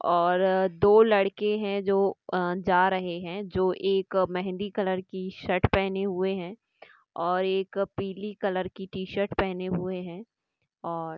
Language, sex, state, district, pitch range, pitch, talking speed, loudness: Hindi, female, Maharashtra, Nagpur, 185-195 Hz, 190 Hz, 150 wpm, -27 LUFS